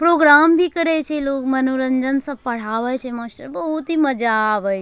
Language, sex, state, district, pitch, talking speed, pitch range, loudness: Angika, female, Bihar, Bhagalpur, 270 Hz, 185 wpm, 240-305 Hz, -18 LUFS